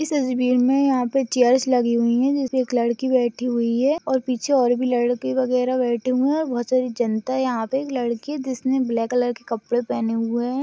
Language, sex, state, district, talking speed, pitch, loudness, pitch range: Hindi, female, Maharashtra, Pune, 220 wpm, 250 Hz, -21 LUFS, 240-260 Hz